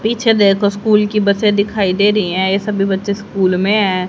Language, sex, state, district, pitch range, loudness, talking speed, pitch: Hindi, female, Haryana, Rohtak, 195-210 Hz, -14 LUFS, 235 wpm, 200 Hz